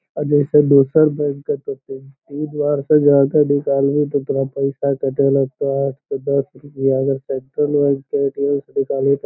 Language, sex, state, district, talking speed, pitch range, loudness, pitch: Magahi, male, Bihar, Lakhisarai, 190 wpm, 135-145 Hz, -18 LUFS, 140 Hz